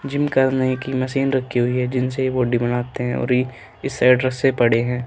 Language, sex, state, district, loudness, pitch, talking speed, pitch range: Hindi, male, Uttarakhand, Tehri Garhwal, -20 LUFS, 125 Hz, 200 wpm, 125-130 Hz